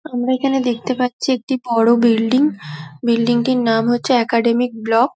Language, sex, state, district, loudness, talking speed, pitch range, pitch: Bengali, female, West Bengal, Dakshin Dinajpur, -17 LUFS, 165 wpm, 230-255 Hz, 240 Hz